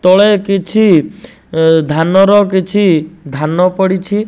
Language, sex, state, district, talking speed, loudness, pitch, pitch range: Odia, male, Odisha, Nuapada, 110 wpm, -11 LUFS, 185 Hz, 160-200 Hz